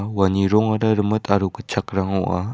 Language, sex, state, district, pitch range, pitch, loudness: Garo, male, Meghalaya, West Garo Hills, 95-105 Hz, 100 Hz, -20 LUFS